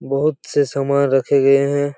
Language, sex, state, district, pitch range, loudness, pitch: Hindi, male, Chhattisgarh, Raigarh, 140-145 Hz, -17 LUFS, 140 Hz